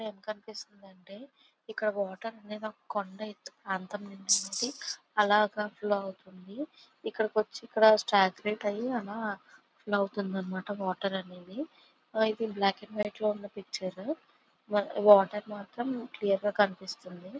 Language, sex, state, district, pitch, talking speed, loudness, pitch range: Telugu, female, Andhra Pradesh, Visakhapatnam, 210 Hz, 135 wpm, -31 LUFS, 195-220 Hz